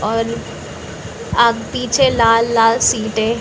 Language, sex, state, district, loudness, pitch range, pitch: Hindi, female, Uttar Pradesh, Varanasi, -15 LUFS, 225-235 Hz, 230 Hz